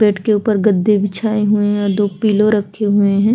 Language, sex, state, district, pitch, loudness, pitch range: Hindi, female, Uttar Pradesh, Hamirpur, 210 Hz, -15 LUFS, 205-215 Hz